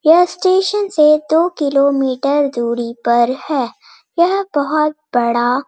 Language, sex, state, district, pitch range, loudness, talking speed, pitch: Hindi, female, Bihar, Bhagalpur, 255-340 Hz, -15 LUFS, 135 wpm, 290 Hz